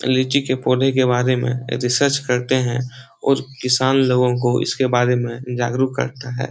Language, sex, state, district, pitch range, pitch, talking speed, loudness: Hindi, male, Bihar, Jahanabad, 125-130 Hz, 125 Hz, 175 wpm, -19 LUFS